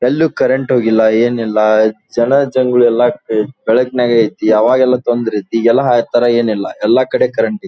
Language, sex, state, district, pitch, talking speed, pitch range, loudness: Kannada, male, Karnataka, Dharwad, 120 Hz, 155 wpm, 110-130 Hz, -13 LUFS